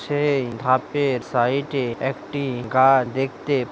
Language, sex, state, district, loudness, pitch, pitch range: Bengali, male, West Bengal, Malda, -21 LUFS, 135 Hz, 125-140 Hz